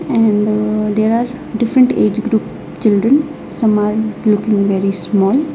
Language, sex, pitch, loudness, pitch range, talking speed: English, female, 215 Hz, -15 LUFS, 210-235 Hz, 130 wpm